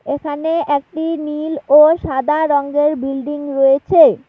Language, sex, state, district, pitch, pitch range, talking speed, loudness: Bengali, female, West Bengal, Alipurduar, 295 Hz, 285-310 Hz, 110 wpm, -15 LUFS